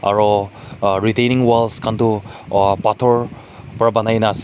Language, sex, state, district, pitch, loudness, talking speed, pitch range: Nagamese, male, Nagaland, Kohima, 115 Hz, -17 LUFS, 160 wpm, 105-120 Hz